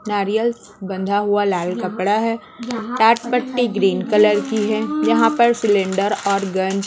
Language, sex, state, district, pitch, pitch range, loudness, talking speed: Hindi, female, Chhattisgarh, Raipur, 210 Hz, 195-230 Hz, -18 LUFS, 140 wpm